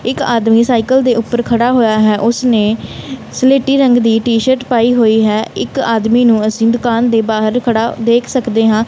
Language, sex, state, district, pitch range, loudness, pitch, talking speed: Punjabi, female, Punjab, Kapurthala, 225-245 Hz, -12 LUFS, 235 Hz, 190 wpm